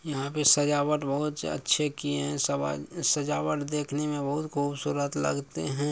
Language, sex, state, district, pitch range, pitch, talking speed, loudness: Maithili, male, Bihar, Samastipur, 140-150 Hz, 145 Hz, 140 wpm, -28 LUFS